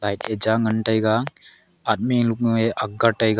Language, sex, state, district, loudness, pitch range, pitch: Wancho, male, Arunachal Pradesh, Longding, -21 LUFS, 110-115 Hz, 110 Hz